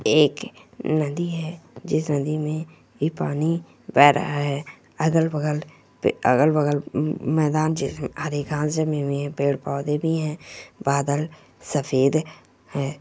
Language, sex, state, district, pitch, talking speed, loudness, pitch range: Hindi, female, Bihar, Jamui, 150 Hz, 130 wpm, -23 LUFS, 140-155 Hz